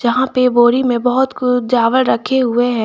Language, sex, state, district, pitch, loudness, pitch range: Hindi, female, Jharkhand, Garhwa, 245 Hz, -14 LUFS, 240-255 Hz